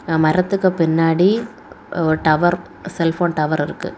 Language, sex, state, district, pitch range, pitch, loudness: Tamil, female, Tamil Nadu, Kanyakumari, 160-190 Hz, 170 Hz, -17 LUFS